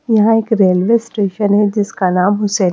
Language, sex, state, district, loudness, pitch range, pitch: Hindi, female, Punjab, Kapurthala, -14 LUFS, 190-220 Hz, 205 Hz